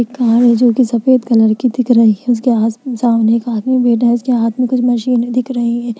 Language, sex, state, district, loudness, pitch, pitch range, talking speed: Hindi, female, Bihar, Gaya, -13 LUFS, 240 Hz, 230-250 Hz, 270 wpm